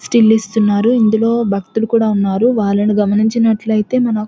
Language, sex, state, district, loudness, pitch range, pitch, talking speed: Telugu, female, Telangana, Nalgonda, -14 LUFS, 210-230 Hz, 220 Hz, 140 wpm